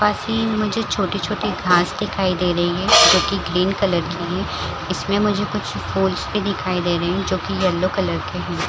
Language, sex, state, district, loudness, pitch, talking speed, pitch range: Hindi, female, Bihar, Madhepura, -19 LUFS, 190 Hz, 220 wpm, 180-205 Hz